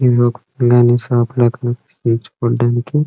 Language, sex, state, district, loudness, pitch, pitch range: Telugu, male, Andhra Pradesh, Srikakulam, -15 LUFS, 120 Hz, 120-125 Hz